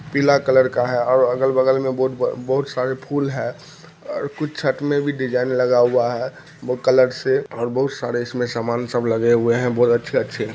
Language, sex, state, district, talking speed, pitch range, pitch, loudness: Maithili, male, Bihar, Kishanganj, 205 wpm, 120-135 Hz, 130 Hz, -19 LUFS